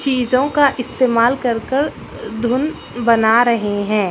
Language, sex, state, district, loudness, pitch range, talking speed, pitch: Hindi, female, Bihar, Bhagalpur, -16 LUFS, 230-265 Hz, 115 wpm, 240 Hz